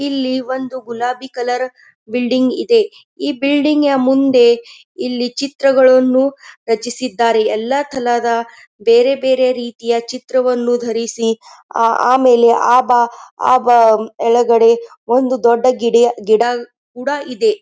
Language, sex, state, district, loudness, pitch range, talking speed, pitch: Kannada, female, Karnataka, Gulbarga, -14 LUFS, 235-260 Hz, 100 wpm, 245 Hz